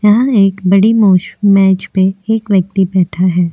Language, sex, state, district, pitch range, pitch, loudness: Hindi, female, Uttar Pradesh, Jyotiba Phule Nagar, 185-205 Hz, 195 Hz, -11 LUFS